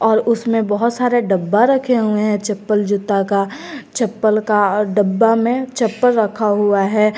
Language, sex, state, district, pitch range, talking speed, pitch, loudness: Hindi, female, Jharkhand, Garhwa, 205-235 Hz, 165 wpm, 215 Hz, -16 LUFS